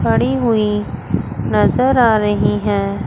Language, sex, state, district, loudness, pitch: Hindi, female, Chandigarh, Chandigarh, -16 LUFS, 210 Hz